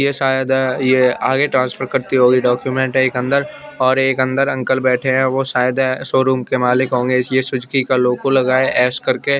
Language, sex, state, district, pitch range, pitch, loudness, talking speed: Hindi, male, Chandigarh, Chandigarh, 125-135 Hz, 130 Hz, -16 LUFS, 185 wpm